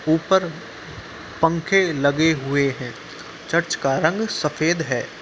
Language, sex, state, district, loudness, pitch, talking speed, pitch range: Hindi, male, Uttar Pradesh, Muzaffarnagar, -21 LUFS, 155 Hz, 115 wpm, 140-165 Hz